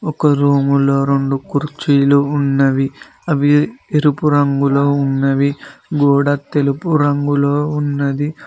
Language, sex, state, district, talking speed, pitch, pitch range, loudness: Telugu, male, Telangana, Mahabubabad, 90 wpm, 140 Hz, 140-145 Hz, -15 LUFS